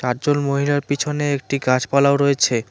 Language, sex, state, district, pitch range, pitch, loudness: Bengali, male, West Bengal, Cooch Behar, 130-145 Hz, 140 Hz, -19 LUFS